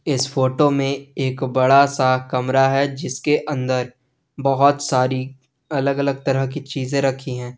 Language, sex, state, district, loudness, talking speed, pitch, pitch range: Hindi, male, Jharkhand, Garhwa, -19 LUFS, 150 wpm, 135 Hz, 130-140 Hz